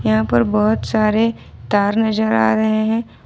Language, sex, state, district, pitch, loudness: Hindi, female, Jharkhand, Ranchi, 205 Hz, -17 LUFS